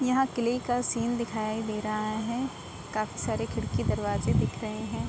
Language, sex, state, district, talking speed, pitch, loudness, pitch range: Hindi, female, Uttar Pradesh, Ghazipur, 175 wpm, 220 Hz, -30 LUFS, 210-240 Hz